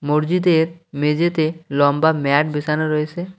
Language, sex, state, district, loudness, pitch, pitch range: Bengali, male, West Bengal, Cooch Behar, -18 LUFS, 155 Hz, 150-165 Hz